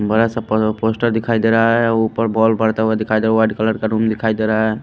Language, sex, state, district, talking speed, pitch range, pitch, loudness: Hindi, male, Punjab, Pathankot, 285 wpm, 110-115 Hz, 110 Hz, -16 LUFS